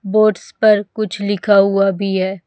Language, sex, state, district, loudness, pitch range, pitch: Hindi, female, Chhattisgarh, Raipur, -15 LUFS, 195-215 Hz, 200 Hz